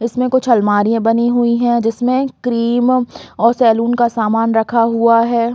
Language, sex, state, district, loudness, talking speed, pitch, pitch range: Hindi, female, Chhattisgarh, Raigarh, -14 LUFS, 160 wpm, 235 Hz, 230-240 Hz